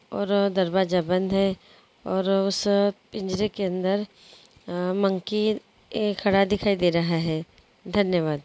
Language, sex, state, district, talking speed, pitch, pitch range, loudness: Hindi, female, Andhra Pradesh, Guntur, 130 wpm, 195 Hz, 185-200 Hz, -24 LUFS